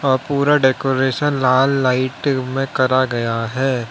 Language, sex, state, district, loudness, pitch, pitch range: Hindi, male, Uttar Pradesh, Lalitpur, -17 LUFS, 130 Hz, 130-135 Hz